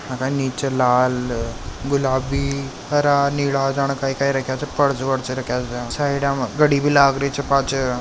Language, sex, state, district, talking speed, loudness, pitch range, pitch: Marwari, male, Rajasthan, Nagaur, 80 wpm, -20 LUFS, 130-140 Hz, 135 Hz